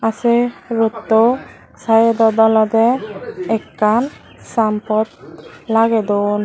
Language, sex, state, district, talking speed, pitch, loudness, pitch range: Chakma, female, Tripura, Dhalai, 75 wpm, 225 Hz, -16 LUFS, 220-235 Hz